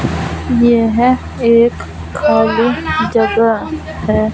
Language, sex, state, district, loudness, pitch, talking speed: Hindi, female, Punjab, Fazilka, -13 LUFS, 225 Hz, 70 wpm